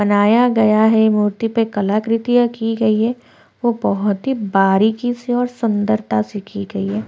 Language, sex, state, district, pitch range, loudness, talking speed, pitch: Hindi, female, Chhattisgarh, Korba, 205-235 Hz, -17 LUFS, 170 wpm, 220 Hz